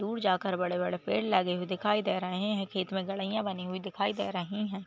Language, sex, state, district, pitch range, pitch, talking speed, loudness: Hindi, female, Maharashtra, Nagpur, 185-205 Hz, 195 Hz, 235 wpm, -31 LUFS